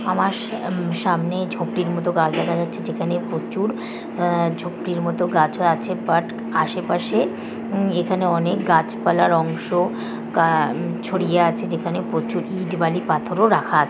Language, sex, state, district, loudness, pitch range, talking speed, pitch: Bengali, female, West Bengal, Kolkata, -21 LUFS, 170-185 Hz, 135 wpm, 180 Hz